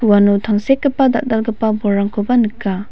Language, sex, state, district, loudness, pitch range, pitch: Garo, female, Meghalaya, West Garo Hills, -16 LUFS, 205-240 Hz, 220 Hz